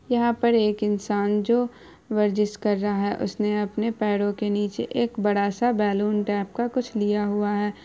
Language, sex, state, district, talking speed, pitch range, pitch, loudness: Hindi, female, Bihar, Araria, 185 wpm, 205-230 Hz, 210 Hz, -24 LUFS